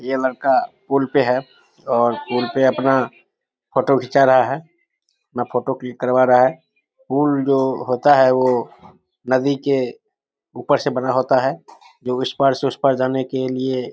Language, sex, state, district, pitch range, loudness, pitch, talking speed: Maithili, male, Bihar, Samastipur, 125-140 Hz, -18 LUFS, 130 Hz, 170 wpm